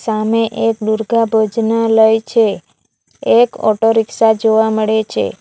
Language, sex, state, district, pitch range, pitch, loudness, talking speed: Gujarati, female, Gujarat, Valsad, 220-225 Hz, 220 Hz, -14 LUFS, 120 wpm